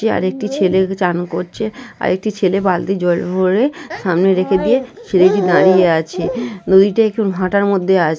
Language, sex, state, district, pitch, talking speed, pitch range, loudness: Bengali, female, West Bengal, North 24 Parganas, 190 Hz, 145 wpm, 180-205 Hz, -15 LUFS